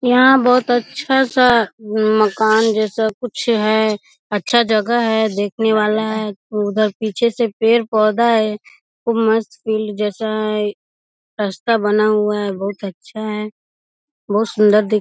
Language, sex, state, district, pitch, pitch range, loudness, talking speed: Hindi, female, Bihar, East Champaran, 215 Hz, 210-235 Hz, -17 LUFS, 130 wpm